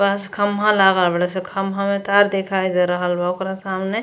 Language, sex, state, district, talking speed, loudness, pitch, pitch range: Bhojpuri, female, Uttar Pradesh, Gorakhpur, 210 wpm, -19 LUFS, 190 Hz, 185-200 Hz